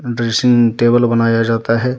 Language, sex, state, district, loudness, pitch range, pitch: Hindi, male, Jharkhand, Deoghar, -14 LUFS, 115-120 Hz, 120 Hz